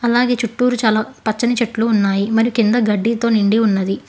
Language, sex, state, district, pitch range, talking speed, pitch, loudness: Telugu, female, Telangana, Hyderabad, 215-235 Hz, 160 wpm, 225 Hz, -16 LUFS